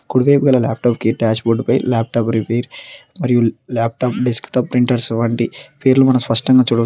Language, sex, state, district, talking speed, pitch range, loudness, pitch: Telugu, male, Telangana, Mahabubabad, 175 wpm, 115-125 Hz, -16 LUFS, 120 Hz